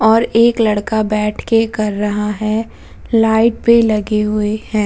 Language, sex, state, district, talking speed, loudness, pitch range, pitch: Hindi, female, Bihar, Vaishali, 160 wpm, -15 LUFS, 210-225 Hz, 215 Hz